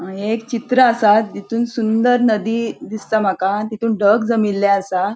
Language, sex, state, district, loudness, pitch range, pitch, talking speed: Konkani, female, Goa, North and South Goa, -17 LUFS, 205-230 Hz, 220 Hz, 150 wpm